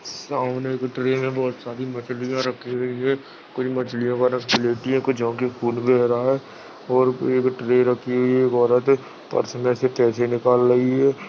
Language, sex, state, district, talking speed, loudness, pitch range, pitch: Hindi, male, Uttarakhand, Uttarkashi, 185 wpm, -21 LUFS, 125-130 Hz, 125 Hz